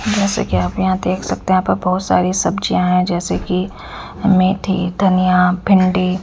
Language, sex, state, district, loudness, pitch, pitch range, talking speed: Hindi, female, Haryana, Rohtak, -16 LUFS, 185 Hz, 180-190 Hz, 175 wpm